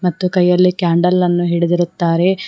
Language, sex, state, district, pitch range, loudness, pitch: Kannada, female, Karnataka, Koppal, 175-180 Hz, -15 LUFS, 180 Hz